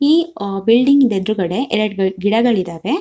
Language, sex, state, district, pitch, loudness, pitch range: Kannada, female, Karnataka, Shimoga, 215 Hz, -16 LUFS, 195-260 Hz